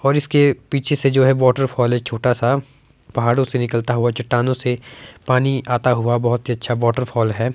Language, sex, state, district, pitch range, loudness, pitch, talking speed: Hindi, male, Himachal Pradesh, Shimla, 120-135 Hz, -18 LUFS, 125 Hz, 190 wpm